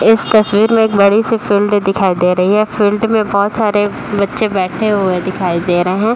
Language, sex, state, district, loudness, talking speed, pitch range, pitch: Hindi, female, Uttar Pradesh, Deoria, -13 LUFS, 215 wpm, 190-215 Hz, 205 Hz